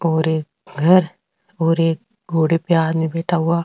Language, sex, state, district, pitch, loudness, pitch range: Rajasthani, female, Rajasthan, Nagaur, 165 Hz, -18 LUFS, 160-170 Hz